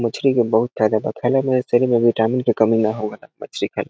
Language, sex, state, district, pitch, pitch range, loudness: Bhojpuri, male, Bihar, Saran, 120 Hz, 110-125 Hz, -19 LUFS